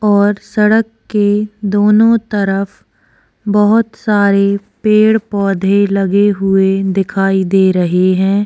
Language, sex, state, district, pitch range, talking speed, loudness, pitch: Hindi, female, Chhattisgarh, Kabirdham, 195-210 Hz, 150 wpm, -13 LUFS, 200 Hz